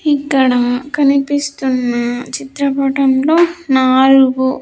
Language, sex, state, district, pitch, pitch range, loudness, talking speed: Telugu, female, Andhra Pradesh, Sri Satya Sai, 270 Hz, 260-285 Hz, -13 LUFS, 50 wpm